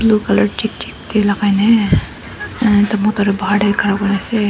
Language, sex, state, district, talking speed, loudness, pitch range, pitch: Nagamese, female, Nagaland, Dimapur, 145 wpm, -15 LUFS, 200-215 Hz, 205 Hz